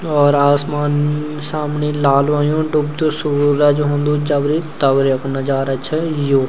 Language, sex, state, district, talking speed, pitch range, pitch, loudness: Garhwali, male, Uttarakhand, Uttarkashi, 130 wpm, 140-150 Hz, 145 Hz, -16 LUFS